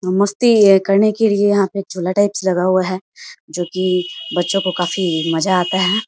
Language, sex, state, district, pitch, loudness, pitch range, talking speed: Hindi, female, Bihar, Samastipur, 185 Hz, -16 LUFS, 180-200 Hz, 205 wpm